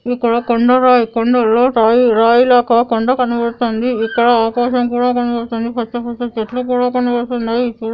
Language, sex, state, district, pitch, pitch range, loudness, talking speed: Telugu, female, Andhra Pradesh, Anantapur, 240 Hz, 230-245 Hz, -14 LUFS, 135 wpm